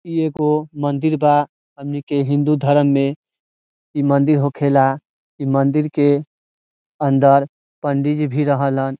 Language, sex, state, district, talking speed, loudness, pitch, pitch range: Bhojpuri, male, Bihar, Saran, 135 wpm, -17 LUFS, 145 Hz, 140-150 Hz